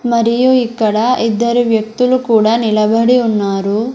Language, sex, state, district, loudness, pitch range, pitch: Telugu, female, Andhra Pradesh, Sri Satya Sai, -13 LUFS, 215-245 Hz, 230 Hz